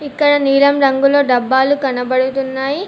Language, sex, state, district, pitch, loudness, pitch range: Telugu, female, Telangana, Komaram Bheem, 275 Hz, -14 LUFS, 265-285 Hz